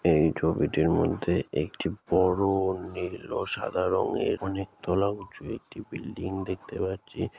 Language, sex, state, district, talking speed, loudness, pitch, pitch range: Bengali, male, West Bengal, Malda, 130 wpm, -28 LUFS, 95 Hz, 95-100 Hz